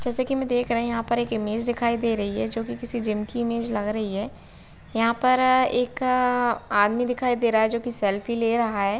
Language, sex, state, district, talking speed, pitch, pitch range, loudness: Hindi, female, Chhattisgarh, Bilaspur, 255 wpm, 235 Hz, 220-245 Hz, -24 LUFS